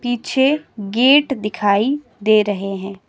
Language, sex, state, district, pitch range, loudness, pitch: Hindi, female, Himachal Pradesh, Shimla, 200-265 Hz, -17 LUFS, 220 Hz